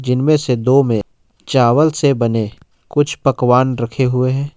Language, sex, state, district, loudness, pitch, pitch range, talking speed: Hindi, male, Jharkhand, Ranchi, -15 LUFS, 130 Hz, 120-140 Hz, 155 wpm